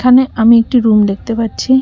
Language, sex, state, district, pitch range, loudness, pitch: Bengali, female, West Bengal, Cooch Behar, 225-255 Hz, -11 LUFS, 230 Hz